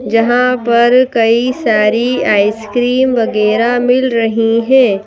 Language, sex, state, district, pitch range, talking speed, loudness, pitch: Hindi, female, Madhya Pradesh, Bhopal, 225-250 Hz, 105 wpm, -12 LUFS, 235 Hz